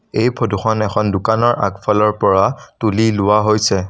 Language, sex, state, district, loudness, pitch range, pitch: Assamese, male, Assam, Sonitpur, -16 LUFS, 105-110 Hz, 105 Hz